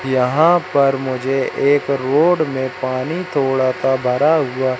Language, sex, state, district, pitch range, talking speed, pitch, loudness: Hindi, male, Madhya Pradesh, Katni, 130-145 Hz, 135 wpm, 135 Hz, -17 LUFS